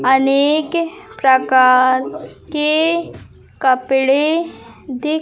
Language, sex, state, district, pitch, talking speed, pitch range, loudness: Hindi, male, Madhya Pradesh, Katni, 280 Hz, 55 wpm, 260-320 Hz, -15 LUFS